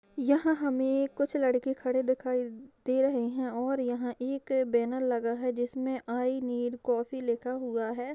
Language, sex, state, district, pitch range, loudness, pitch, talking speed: Hindi, female, Maharashtra, Nagpur, 245-265 Hz, -30 LUFS, 255 Hz, 160 wpm